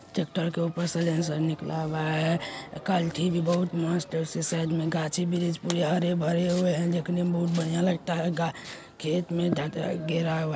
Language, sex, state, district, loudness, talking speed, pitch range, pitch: Hindi, male, Bihar, Saharsa, -28 LUFS, 175 wpm, 160-175 Hz, 170 Hz